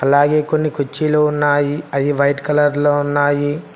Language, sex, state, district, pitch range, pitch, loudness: Telugu, male, Telangana, Mahabubabad, 145-150 Hz, 145 Hz, -16 LUFS